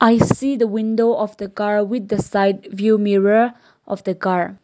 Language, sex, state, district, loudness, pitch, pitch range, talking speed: English, female, Nagaland, Kohima, -18 LUFS, 210 Hz, 200-230 Hz, 195 wpm